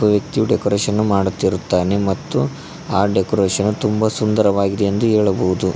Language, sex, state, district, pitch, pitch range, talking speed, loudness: Kannada, male, Karnataka, Koppal, 100 Hz, 95-105 Hz, 105 wpm, -18 LUFS